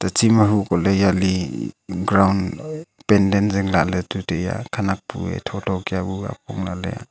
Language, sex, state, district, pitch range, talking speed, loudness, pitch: Wancho, male, Arunachal Pradesh, Longding, 95-105 Hz, 160 wpm, -21 LUFS, 95 Hz